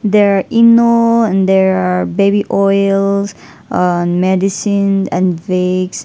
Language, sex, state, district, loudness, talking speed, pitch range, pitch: English, female, Nagaland, Dimapur, -12 LUFS, 120 wpm, 185-200 Hz, 195 Hz